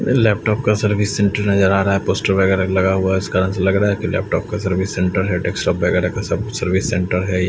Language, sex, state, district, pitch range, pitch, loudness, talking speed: Hindi, male, Haryana, Charkhi Dadri, 95-105 Hz, 95 Hz, -18 LUFS, 240 wpm